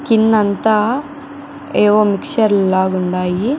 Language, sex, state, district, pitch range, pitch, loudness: Telugu, female, Andhra Pradesh, Chittoor, 195-245 Hz, 215 Hz, -15 LUFS